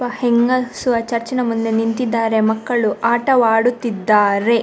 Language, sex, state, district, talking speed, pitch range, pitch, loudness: Kannada, female, Karnataka, Dakshina Kannada, 105 wpm, 225-245 Hz, 235 Hz, -17 LUFS